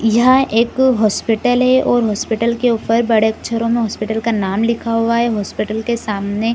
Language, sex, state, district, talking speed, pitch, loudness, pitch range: Hindi, female, Chhattisgarh, Bilaspur, 195 wpm, 230 Hz, -16 LUFS, 220-235 Hz